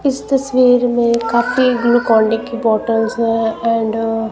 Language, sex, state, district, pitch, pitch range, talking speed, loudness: Hindi, female, Punjab, Kapurthala, 230 Hz, 225-245 Hz, 140 wpm, -15 LUFS